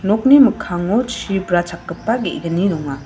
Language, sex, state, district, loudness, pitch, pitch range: Garo, female, Meghalaya, West Garo Hills, -17 LUFS, 190 Hz, 175-225 Hz